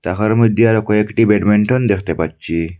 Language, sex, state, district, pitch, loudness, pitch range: Bengali, male, Assam, Hailakandi, 105 Hz, -15 LUFS, 85-110 Hz